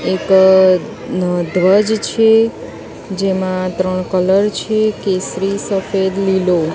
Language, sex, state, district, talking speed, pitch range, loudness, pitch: Gujarati, female, Gujarat, Gandhinagar, 105 wpm, 185-200 Hz, -14 LUFS, 190 Hz